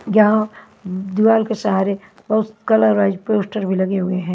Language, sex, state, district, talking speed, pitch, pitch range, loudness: Hindi, female, Himachal Pradesh, Shimla, 165 wpm, 210 Hz, 190-215 Hz, -18 LUFS